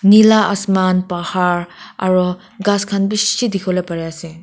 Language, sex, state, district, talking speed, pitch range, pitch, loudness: Nagamese, female, Nagaland, Kohima, 150 wpm, 180-205 Hz, 185 Hz, -16 LUFS